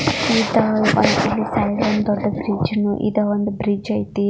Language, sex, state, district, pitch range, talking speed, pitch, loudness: Kannada, female, Karnataka, Belgaum, 205-215 Hz, 110 wpm, 210 Hz, -19 LUFS